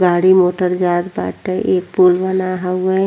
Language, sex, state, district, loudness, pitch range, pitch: Bhojpuri, female, Uttar Pradesh, Ghazipur, -15 LUFS, 180-185 Hz, 185 Hz